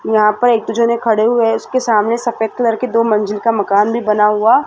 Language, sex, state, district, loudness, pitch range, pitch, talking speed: Hindi, female, Rajasthan, Jaipur, -14 LUFS, 210-235 Hz, 225 Hz, 255 wpm